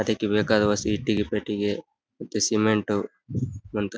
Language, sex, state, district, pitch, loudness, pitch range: Kannada, male, Karnataka, Bellary, 105 Hz, -25 LUFS, 105-110 Hz